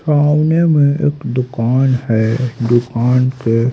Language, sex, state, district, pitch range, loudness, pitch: Hindi, male, Haryana, Rohtak, 120-145 Hz, -14 LUFS, 125 Hz